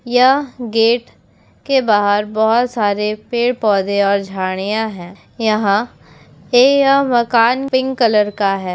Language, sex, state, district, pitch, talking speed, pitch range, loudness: Hindi, female, Jharkhand, Jamtara, 220 Hz, 125 wpm, 200-245 Hz, -15 LUFS